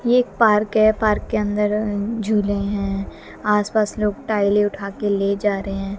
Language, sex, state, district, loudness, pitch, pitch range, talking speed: Hindi, female, Haryana, Jhajjar, -20 LUFS, 210 Hz, 200-215 Hz, 180 wpm